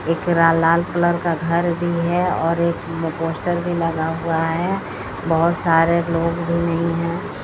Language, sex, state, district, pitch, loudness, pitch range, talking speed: Hindi, female, Odisha, Sambalpur, 170 Hz, -19 LUFS, 165-170 Hz, 160 wpm